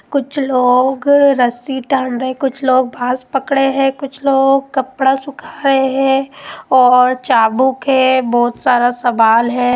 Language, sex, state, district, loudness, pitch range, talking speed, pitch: Hindi, female, Odisha, Malkangiri, -14 LUFS, 250-275 Hz, 145 wpm, 265 Hz